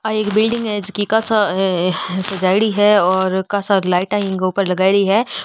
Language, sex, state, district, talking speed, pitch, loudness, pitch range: Rajasthani, female, Rajasthan, Nagaur, 185 wpm, 200 Hz, -16 LUFS, 185-210 Hz